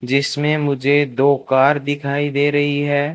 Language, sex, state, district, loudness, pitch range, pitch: Hindi, male, Rajasthan, Bikaner, -17 LUFS, 140-145 Hz, 145 Hz